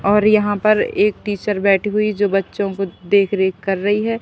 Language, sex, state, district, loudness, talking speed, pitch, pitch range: Hindi, female, Madhya Pradesh, Katni, -17 LUFS, 200 wpm, 205 Hz, 195-210 Hz